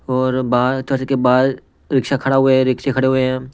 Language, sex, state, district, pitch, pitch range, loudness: Hindi, male, Punjab, Pathankot, 130 Hz, 130-135 Hz, -17 LUFS